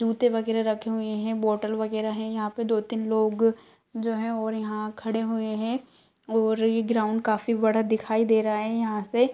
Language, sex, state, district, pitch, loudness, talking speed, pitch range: Hindi, female, Chhattisgarh, Kabirdham, 220 Hz, -26 LUFS, 200 wpm, 220-225 Hz